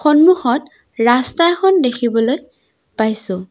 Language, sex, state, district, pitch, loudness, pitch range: Assamese, female, Assam, Sonitpur, 255 Hz, -15 LUFS, 230-315 Hz